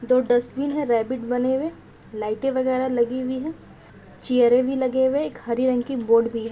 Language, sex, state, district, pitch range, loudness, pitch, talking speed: Hindi, female, Bihar, East Champaran, 240-260 Hz, -22 LUFS, 255 Hz, 210 wpm